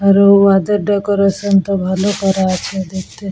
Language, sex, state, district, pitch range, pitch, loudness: Bengali, female, West Bengal, Dakshin Dinajpur, 190-200 Hz, 195 Hz, -14 LUFS